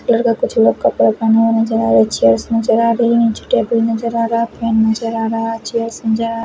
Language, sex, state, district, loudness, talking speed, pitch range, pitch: Hindi, male, Odisha, Khordha, -15 LUFS, 240 wpm, 220-230 Hz, 225 Hz